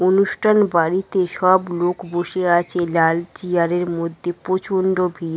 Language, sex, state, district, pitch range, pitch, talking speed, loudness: Bengali, female, West Bengal, Dakshin Dinajpur, 170-185 Hz, 175 Hz, 135 wpm, -19 LUFS